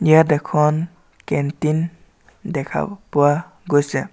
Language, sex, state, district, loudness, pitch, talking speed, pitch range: Assamese, male, Assam, Sonitpur, -20 LUFS, 155 Hz, 85 wpm, 145-170 Hz